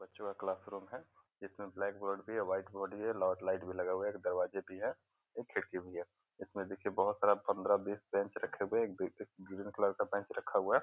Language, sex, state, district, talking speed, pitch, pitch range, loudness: Hindi, male, Bihar, Gopalganj, 235 wpm, 100 Hz, 95-100 Hz, -38 LUFS